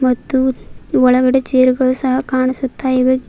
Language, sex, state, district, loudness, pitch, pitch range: Kannada, female, Karnataka, Bidar, -15 LUFS, 255 Hz, 255-260 Hz